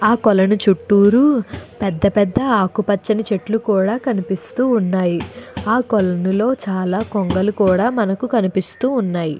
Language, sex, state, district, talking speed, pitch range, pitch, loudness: Telugu, female, Andhra Pradesh, Anantapur, 115 wpm, 190-225 Hz, 205 Hz, -17 LUFS